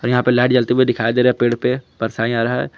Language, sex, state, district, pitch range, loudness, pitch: Hindi, male, Jharkhand, Palamu, 120-125 Hz, -17 LUFS, 125 Hz